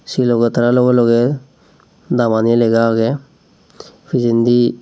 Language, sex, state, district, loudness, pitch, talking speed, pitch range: Chakma, male, Tripura, Dhalai, -14 LUFS, 120 Hz, 110 wpm, 115-125 Hz